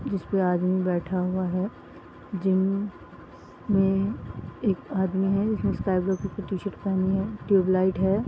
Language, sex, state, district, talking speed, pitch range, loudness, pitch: Hindi, female, Uttar Pradesh, Gorakhpur, 135 wpm, 185-200 Hz, -26 LUFS, 190 Hz